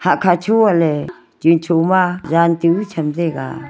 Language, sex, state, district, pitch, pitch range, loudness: Wancho, female, Arunachal Pradesh, Longding, 170 Hz, 160-180 Hz, -16 LUFS